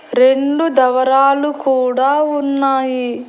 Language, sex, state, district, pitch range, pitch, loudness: Telugu, female, Andhra Pradesh, Annamaya, 255-280 Hz, 270 Hz, -14 LUFS